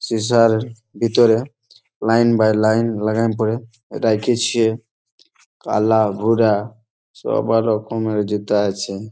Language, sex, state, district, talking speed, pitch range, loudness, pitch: Bengali, male, West Bengal, Malda, 90 wpm, 110-115 Hz, -18 LUFS, 110 Hz